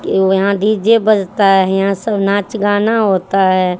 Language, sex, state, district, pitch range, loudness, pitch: Hindi, female, Haryana, Charkhi Dadri, 190-215 Hz, -13 LUFS, 200 Hz